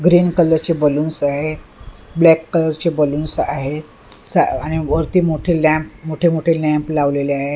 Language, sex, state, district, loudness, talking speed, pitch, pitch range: Marathi, female, Maharashtra, Mumbai Suburban, -16 LUFS, 150 wpm, 155 Hz, 150-165 Hz